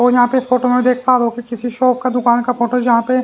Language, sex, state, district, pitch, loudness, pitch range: Hindi, male, Haryana, Jhajjar, 250 Hz, -15 LUFS, 240-250 Hz